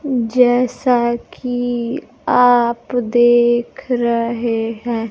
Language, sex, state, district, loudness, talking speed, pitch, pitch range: Hindi, female, Bihar, Kaimur, -16 LUFS, 70 wpm, 240 Hz, 235-245 Hz